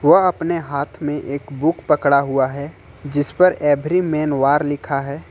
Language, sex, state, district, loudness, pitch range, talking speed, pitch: Hindi, male, Jharkhand, Ranchi, -18 LUFS, 140-160 Hz, 180 wpm, 145 Hz